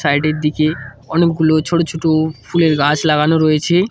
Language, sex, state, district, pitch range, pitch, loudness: Bengali, male, West Bengal, Cooch Behar, 150-165 Hz, 155 Hz, -15 LUFS